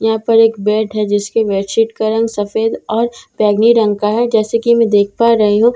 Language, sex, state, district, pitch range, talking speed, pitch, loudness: Hindi, female, Bihar, Katihar, 210-230 Hz, 250 wpm, 220 Hz, -14 LUFS